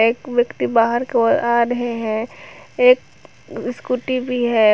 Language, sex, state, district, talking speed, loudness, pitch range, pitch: Hindi, female, Jharkhand, Garhwa, 125 wpm, -18 LUFS, 230-250 Hz, 240 Hz